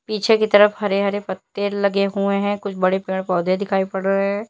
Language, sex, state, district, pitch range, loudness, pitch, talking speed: Hindi, female, Uttar Pradesh, Lalitpur, 195-205 Hz, -19 LUFS, 200 Hz, 225 wpm